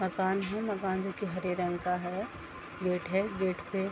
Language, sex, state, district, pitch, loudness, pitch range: Hindi, female, Bihar, Gopalganj, 190 Hz, -33 LUFS, 180-195 Hz